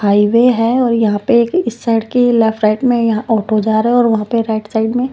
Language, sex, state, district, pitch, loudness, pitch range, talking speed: Hindi, female, Punjab, Pathankot, 230 Hz, -13 LUFS, 215-240 Hz, 255 wpm